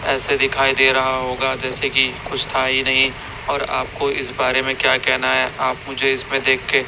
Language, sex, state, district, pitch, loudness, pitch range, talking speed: Hindi, male, Chhattisgarh, Raipur, 130 Hz, -18 LUFS, 130-135 Hz, 210 wpm